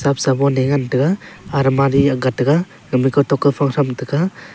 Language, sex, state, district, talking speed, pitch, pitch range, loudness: Wancho, male, Arunachal Pradesh, Longding, 170 wpm, 140 Hz, 135-145 Hz, -17 LUFS